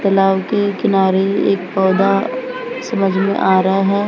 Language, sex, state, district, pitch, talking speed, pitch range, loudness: Hindi, female, Maharashtra, Gondia, 195 Hz, 145 wpm, 190-200 Hz, -16 LUFS